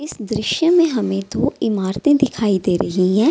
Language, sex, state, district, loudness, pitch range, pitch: Hindi, female, Bihar, Gaya, -18 LUFS, 195-290 Hz, 210 Hz